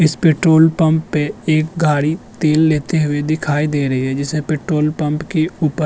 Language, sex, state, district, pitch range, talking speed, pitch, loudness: Hindi, male, Uttar Pradesh, Budaun, 150-160 Hz, 195 wpm, 155 Hz, -16 LUFS